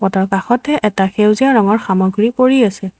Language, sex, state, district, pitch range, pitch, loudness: Assamese, female, Assam, Sonitpur, 195-245 Hz, 210 Hz, -13 LUFS